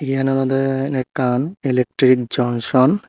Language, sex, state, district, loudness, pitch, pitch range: Chakma, male, Tripura, Unakoti, -18 LUFS, 130 Hz, 125-135 Hz